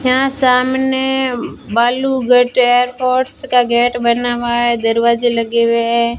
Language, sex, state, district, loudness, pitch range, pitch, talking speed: Hindi, female, Rajasthan, Bikaner, -14 LUFS, 235-255 Hz, 245 Hz, 135 wpm